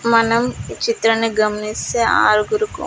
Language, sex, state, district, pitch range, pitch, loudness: Telugu, female, Andhra Pradesh, Chittoor, 215-275 Hz, 230 Hz, -17 LUFS